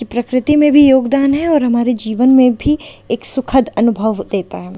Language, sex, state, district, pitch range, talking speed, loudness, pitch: Hindi, female, Delhi, New Delhi, 230-275 Hz, 190 wpm, -13 LUFS, 255 Hz